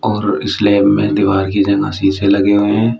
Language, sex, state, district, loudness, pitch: Hindi, male, Uttar Pradesh, Shamli, -13 LUFS, 100 Hz